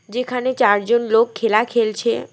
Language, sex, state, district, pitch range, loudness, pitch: Bengali, female, West Bengal, Alipurduar, 220-245 Hz, -18 LUFS, 230 Hz